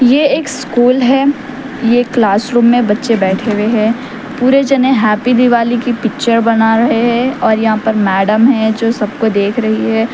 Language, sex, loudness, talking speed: Urdu, male, -12 LUFS, 165 wpm